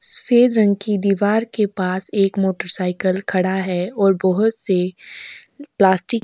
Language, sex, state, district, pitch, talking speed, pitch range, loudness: Hindi, female, Uttar Pradesh, Jyotiba Phule Nagar, 195 Hz, 145 wpm, 185-220 Hz, -18 LUFS